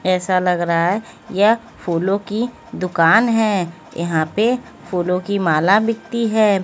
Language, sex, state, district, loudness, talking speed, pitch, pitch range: Hindi, female, Haryana, Jhajjar, -18 LUFS, 145 wpm, 190 Hz, 175-220 Hz